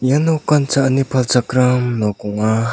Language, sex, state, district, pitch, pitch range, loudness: Garo, male, Meghalaya, South Garo Hills, 125 Hz, 115-140 Hz, -16 LUFS